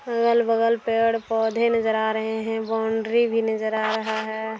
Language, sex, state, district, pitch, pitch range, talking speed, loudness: Hindi, female, Bihar, Darbhanga, 225 Hz, 220-230 Hz, 155 wpm, -23 LUFS